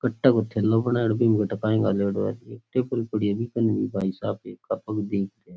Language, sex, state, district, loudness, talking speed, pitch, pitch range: Rajasthani, male, Rajasthan, Churu, -25 LUFS, 120 wpm, 110 Hz, 100-115 Hz